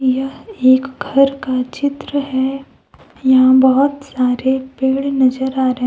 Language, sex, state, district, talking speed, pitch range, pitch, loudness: Hindi, female, Jharkhand, Deoghar, 135 wpm, 255-275 Hz, 265 Hz, -15 LUFS